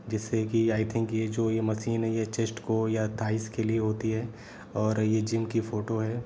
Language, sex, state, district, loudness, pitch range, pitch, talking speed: Hindi, male, Bihar, Saran, -29 LUFS, 110-115 Hz, 110 Hz, 220 wpm